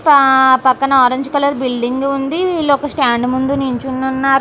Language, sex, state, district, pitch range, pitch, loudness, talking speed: Telugu, female, Andhra Pradesh, Anantapur, 260-280 Hz, 270 Hz, -14 LUFS, 165 wpm